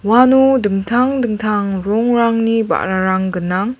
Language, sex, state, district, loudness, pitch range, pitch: Garo, female, Meghalaya, West Garo Hills, -15 LUFS, 195-245 Hz, 225 Hz